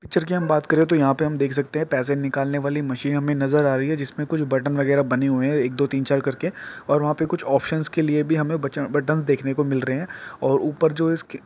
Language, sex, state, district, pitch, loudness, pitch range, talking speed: Hindi, male, Uttarakhand, Tehri Garhwal, 145 Hz, -22 LUFS, 140-155 Hz, 290 wpm